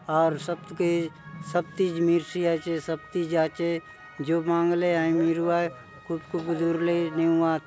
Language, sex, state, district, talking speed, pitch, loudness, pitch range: Halbi, male, Chhattisgarh, Bastar, 150 wpm, 165 Hz, -26 LUFS, 160-170 Hz